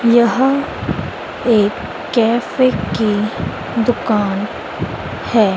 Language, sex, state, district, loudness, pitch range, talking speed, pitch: Hindi, female, Madhya Pradesh, Dhar, -17 LUFS, 210-240 Hz, 65 wpm, 230 Hz